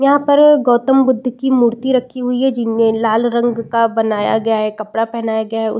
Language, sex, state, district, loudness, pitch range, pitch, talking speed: Hindi, female, Bihar, Saran, -15 LUFS, 225-260 Hz, 235 Hz, 225 wpm